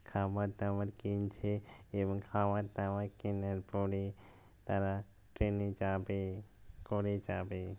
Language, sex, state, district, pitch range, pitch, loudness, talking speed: Bengali, male, West Bengal, Malda, 95-100 Hz, 100 Hz, -38 LUFS, 110 wpm